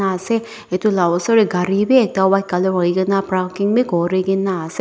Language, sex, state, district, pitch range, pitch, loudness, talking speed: Nagamese, female, Nagaland, Dimapur, 180-205 Hz, 190 Hz, -17 LUFS, 225 wpm